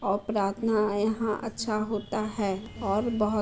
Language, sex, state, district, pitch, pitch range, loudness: Hindi, female, Bihar, Muzaffarpur, 215 Hz, 205-220 Hz, -29 LUFS